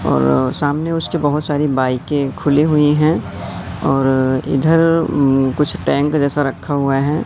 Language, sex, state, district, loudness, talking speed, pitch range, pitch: Hindi, male, Madhya Pradesh, Katni, -16 LUFS, 150 wpm, 130-150 Hz, 145 Hz